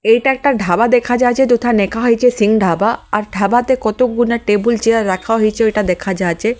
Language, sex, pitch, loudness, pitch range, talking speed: Bengali, female, 225 Hz, -14 LUFS, 210-240 Hz, 180 wpm